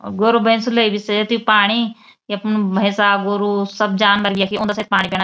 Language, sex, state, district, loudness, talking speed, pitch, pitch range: Garhwali, female, Uttarakhand, Uttarkashi, -16 LUFS, 170 wpm, 205 Hz, 200-215 Hz